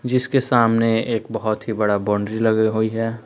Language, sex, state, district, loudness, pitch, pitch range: Hindi, male, Jharkhand, Palamu, -20 LUFS, 110 Hz, 110-115 Hz